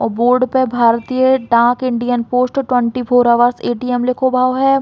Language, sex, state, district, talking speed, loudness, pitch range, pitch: Bundeli, female, Uttar Pradesh, Hamirpur, 160 wpm, -14 LUFS, 240-255 Hz, 250 Hz